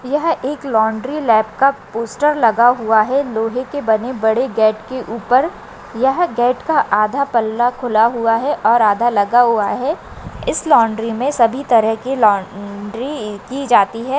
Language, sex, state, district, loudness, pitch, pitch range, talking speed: Hindi, female, Maharashtra, Solapur, -16 LUFS, 235 Hz, 220-265 Hz, 160 wpm